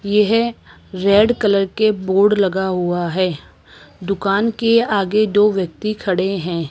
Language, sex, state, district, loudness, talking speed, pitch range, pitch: Hindi, female, Rajasthan, Jaipur, -17 LUFS, 135 wpm, 185-215 Hz, 200 Hz